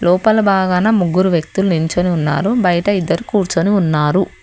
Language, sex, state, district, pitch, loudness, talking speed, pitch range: Telugu, female, Telangana, Hyderabad, 180 Hz, -15 LUFS, 135 wpm, 170-200 Hz